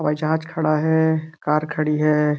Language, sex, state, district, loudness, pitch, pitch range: Hindi, male, Uttar Pradesh, Gorakhpur, -20 LUFS, 155 Hz, 150-160 Hz